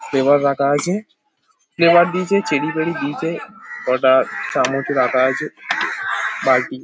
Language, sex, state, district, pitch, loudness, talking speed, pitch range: Bengali, male, West Bengal, Paschim Medinipur, 145 Hz, -18 LUFS, 125 wpm, 135-175 Hz